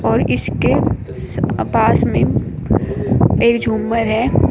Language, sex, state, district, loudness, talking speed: Hindi, female, Uttar Pradesh, Shamli, -16 LUFS, 95 wpm